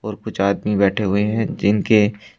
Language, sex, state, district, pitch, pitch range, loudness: Hindi, male, Uttar Pradesh, Shamli, 105 Hz, 100-105 Hz, -18 LUFS